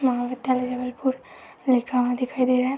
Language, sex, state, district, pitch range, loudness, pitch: Hindi, female, Uttar Pradesh, Gorakhpur, 250-260 Hz, -24 LUFS, 255 Hz